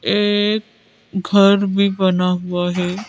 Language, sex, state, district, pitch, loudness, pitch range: Hindi, female, Madhya Pradesh, Bhopal, 195 Hz, -17 LUFS, 180-205 Hz